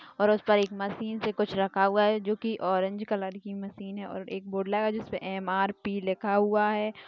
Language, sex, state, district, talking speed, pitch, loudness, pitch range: Hindi, female, Chhattisgarh, Sarguja, 245 wpm, 205 Hz, -29 LUFS, 195-210 Hz